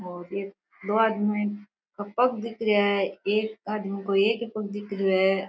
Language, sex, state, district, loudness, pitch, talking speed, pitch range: Rajasthani, female, Rajasthan, Nagaur, -26 LUFS, 205 Hz, 195 wpm, 195-215 Hz